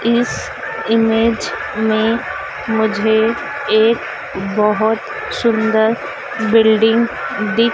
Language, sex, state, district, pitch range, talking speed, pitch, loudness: Hindi, female, Madhya Pradesh, Dhar, 220-230 Hz, 70 wpm, 225 Hz, -16 LUFS